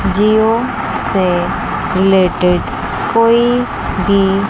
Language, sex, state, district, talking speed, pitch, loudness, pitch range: Hindi, female, Chandigarh, Chandigarh, 65 wpm, 195 Hz, -14 LUFS, 185-225 Hz